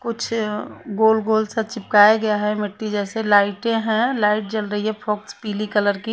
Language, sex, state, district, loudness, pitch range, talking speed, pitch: Hindi, female, Haryana, Charkhi Dadri, -20 LUFS, 210-220 Hz, 185 wpm, 215 Hz